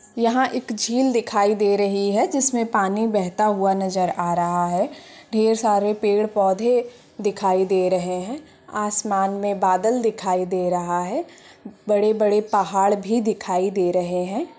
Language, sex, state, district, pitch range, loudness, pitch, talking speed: Hindi, female, Uttar Pradesh, Etah, 190-230 Hz, -21 LUFS, 205 Hz, 155 wpm